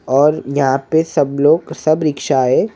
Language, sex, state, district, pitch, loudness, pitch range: Hindi, male, Maharashtra, Mumbai Suburban, 145 Hz, -15 LUFS, 135-160 Hz